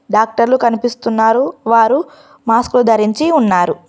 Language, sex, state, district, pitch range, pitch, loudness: Telugu, female, Telangana, Mahabubabad, 225-265 Hz, 235 Hz, -13 LUFS